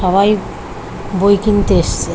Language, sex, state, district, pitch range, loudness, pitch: Bengali, female, West Bengal, Kolkata, 190-205 Hz, -14 LUFS, 200 Hz